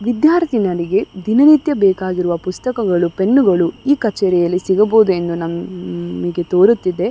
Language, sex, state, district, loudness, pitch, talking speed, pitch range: Kannada, female, Karnataka, Dakshina Kannada, -15 LUFS, 185 Hz, 125 wpm, 175-225 Hz